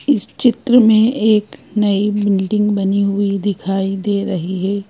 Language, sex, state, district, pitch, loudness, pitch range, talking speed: Hindi, female, Madhya Pradesh, Bhopal, 205 Hz, -16 LUFS, 195-215 Hz, 145 wpm